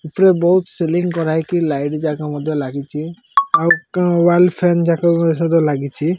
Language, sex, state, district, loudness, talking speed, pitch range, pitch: Odia, male, Odisha, Malkangiri, -16 LUFS, 155 wpm, 155-175 Hz, 170 Hz